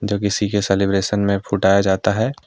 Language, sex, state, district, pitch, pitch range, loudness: Hindi, male, Jharkhand, Deoghar, 100 Hz, 95-105 Hz, -18 LUFS